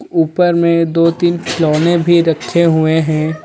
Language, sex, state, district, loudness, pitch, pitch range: Hindi, male, Jharkhand, Ranchi, -13 LUFS, 165 Hz, 160-170 Hz